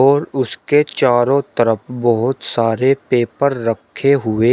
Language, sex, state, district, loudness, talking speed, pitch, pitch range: Hindi, male, Uttar Pradesh, Shamli, -16 LUFS, 120 wpm, 125 Hz, 115-140 Hz